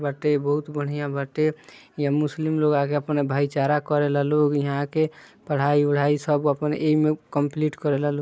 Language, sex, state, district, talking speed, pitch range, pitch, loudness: Bhojpuri, male, Bihar, East Champaran, 170 wpm, 145-150 Hz, 145 Hz, -23 LUFS